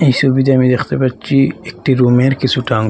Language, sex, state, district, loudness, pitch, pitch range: Bengali, male, Assam, Hailakandi, -13 LUFS, 130 Hz, 125-135 Hz